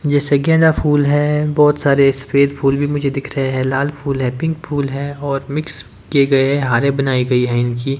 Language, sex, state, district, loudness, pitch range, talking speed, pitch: Hindi, male, Himachal Pradesh, Shimla, -16 LUFS, 135-145 Hz, 220 wpm, 140 Hz